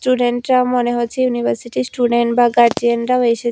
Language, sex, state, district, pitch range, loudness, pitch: Bengali, female, Tripura, West Tripura, 235-250 Hz, -16 LUFS, 240 Hz